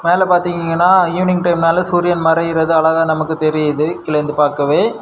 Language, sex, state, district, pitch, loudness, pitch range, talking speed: Tamil, male, Tamil Nadu, Kanyakumari, 165 Hz, -14 LUFS, 155-175 Hz, 155 wpm